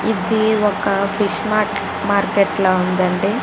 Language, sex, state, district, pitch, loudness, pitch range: Telugu, female, Telangana, Karimnagar, 200 Hz, -17 LUFS, 195-215 Hz